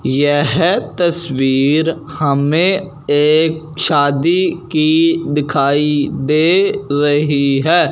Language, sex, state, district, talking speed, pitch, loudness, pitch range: Hindi, male, Punjab, Fazilka, 75 wpm, 150 Hz, -14 LUFS, 145-165 Hz